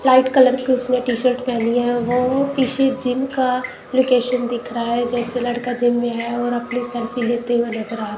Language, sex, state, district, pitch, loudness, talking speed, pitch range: Hindi, female, Punjab, Kapurthala, 245 Hz, -19 LUFS, 200 wpm, 240-255 Hz